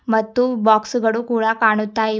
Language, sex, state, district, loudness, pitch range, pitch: Kannada, female, Karnataka, Bidar, -18 LUFS, 220-235 Hz, 225 Hz